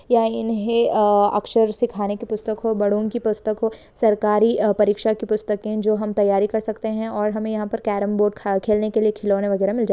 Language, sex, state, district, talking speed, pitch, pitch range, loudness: Hindi, female, Jharkhand, Jamtara, 210 wpm, 215 Hz, 210-220 Hz, -21 LUFS